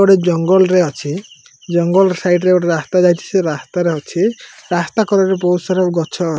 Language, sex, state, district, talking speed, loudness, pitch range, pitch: Odia, male, Odisha, Malkangiri, 190 wpm, -15 LUFS, 170-190 Hz, 180 Hz